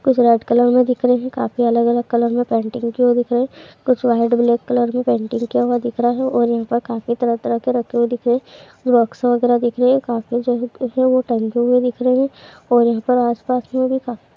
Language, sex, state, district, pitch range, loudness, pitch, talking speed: Hindi, female, Uttar Pradesh, Jalaun, 235-250 Hz, -17 LUFS, 245 Hz, 245 wpm